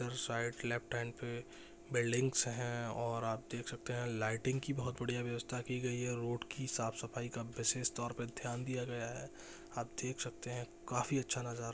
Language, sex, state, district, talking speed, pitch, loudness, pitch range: Hindi, male, Bihar, Jahanabad, 190 wpm, 120 Hz, -39 LUFS, 120-125 Hz